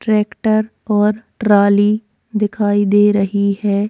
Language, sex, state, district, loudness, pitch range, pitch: Hindi, female, Goa, North and South Goa, -15 LUFS, 200-215 Hz, 210 Hz